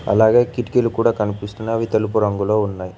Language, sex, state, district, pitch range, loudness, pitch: Telugu, male, Telangana, Mahabubabad, 105-115 Hz, -18 LUFS, 110 Hz